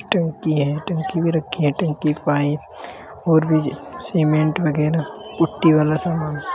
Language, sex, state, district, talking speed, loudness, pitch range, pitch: Hindi, male, Uttar Pradesh, Lalitpur, 145 wpm, -19 LUFS, 150-165 Hz, 155 Hz